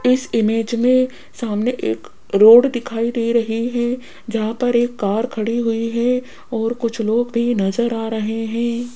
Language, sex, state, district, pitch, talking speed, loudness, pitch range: Hindi, female, Rajasthan, Jaipur, 235 Hz, 165 wpm, -18 LUFS, 225-240 Hz